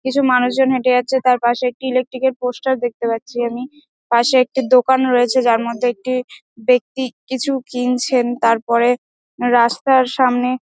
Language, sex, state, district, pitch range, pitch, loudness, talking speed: Bengali, female, West Bengal, Dakshin Dinajpur, 245-260 Hz, 250 Hz, -17 LUFS, 185 wpm